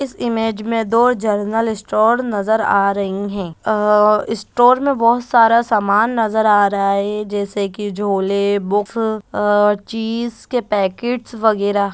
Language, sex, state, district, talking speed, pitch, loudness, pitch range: Hindi, female, Bihar, Jahanabad, 150 wpm, 215 Hz, -16 LUFS, 205-230 Hz